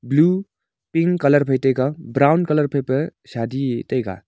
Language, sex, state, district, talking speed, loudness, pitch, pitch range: Wancho, male, Arunachal Pradesh, Longding, 170 wpm, -19 LUFS, 140 Hz, 130-155 Hz